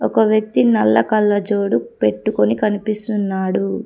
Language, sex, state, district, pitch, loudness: Telugu, female, Telangana, Komaram Bheem, 200 Hz, -17 LUFS